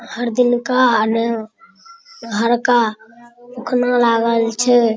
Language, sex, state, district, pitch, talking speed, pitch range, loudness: Maithili, female, Bihar, Araria, 240 Hz, 95 wpm, 230-245 Hz, -16 LUFS